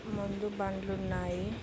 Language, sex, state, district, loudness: Telugu, female, Andhra Pradesh, Krishna, -36 LUFS